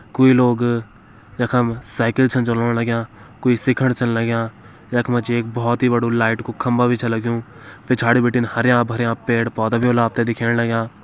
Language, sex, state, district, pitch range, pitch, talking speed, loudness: Kumaoni, male, Uttarakhand, Uttarkashi, 115-120 Hz, 120 Hz, 185 wpm, -19 LUFS